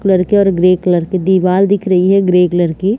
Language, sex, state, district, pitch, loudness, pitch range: Hindi, female, Chhattisgarh, Rajnandgaon, 185 Hz, -12 LUFS, 180-195 Hz